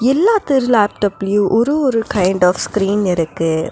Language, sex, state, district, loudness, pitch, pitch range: Tamil, female, Tamil Nadu, Nilgiris, -15 LUFS, 205 Hz, 185-255 Hz